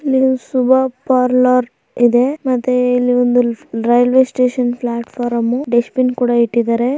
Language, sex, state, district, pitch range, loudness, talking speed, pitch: Kannada, female, Karnataka, Raichur, 240-255 Hz, -15 LUFS, 120 wpm, 250 Hz